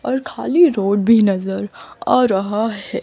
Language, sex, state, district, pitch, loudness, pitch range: Hindi, female, Chandigarh, Chandigarh, 215 Hz, -17 LUFS, 200-250 Hz